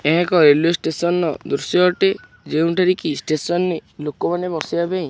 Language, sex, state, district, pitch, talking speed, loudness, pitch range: Odia, male, Odisha, Khordha, 170 Hz, 165 wpm, -19 LUFS, 160-180 Hz